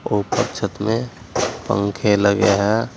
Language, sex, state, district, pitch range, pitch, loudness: Hindi, male, Uttar Pradesh, Saharanpur, 100-110 Hz, 105 Hz, -19 LUFS